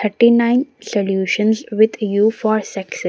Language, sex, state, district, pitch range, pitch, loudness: English, female, Maharashtra, Gondia, 205-235 Hz, 215 Hz, -17 LUFS